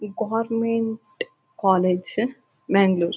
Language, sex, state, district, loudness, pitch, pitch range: Kannada, female, Karnataka, Dakshina Kannada, -23 LUFS, 220 Hz, 190-230 Hz